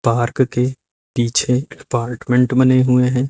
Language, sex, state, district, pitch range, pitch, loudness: Hindi, male, Uttar Pradesh, Lucknow, 120-130 Hz, 125 Hz, -17 LUFS